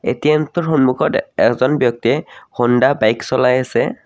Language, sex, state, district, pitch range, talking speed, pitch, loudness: Assamese, male, Assam, Kamrup Metropolitan, 120-150 Hz, 135 wpm, 130 Hz, -16 LUFS